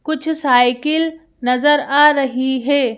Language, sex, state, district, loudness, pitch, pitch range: Hindi, female, Madhya Pradesh, Bhopal, -15 LUFS, 285 Hz, 255-310 Hz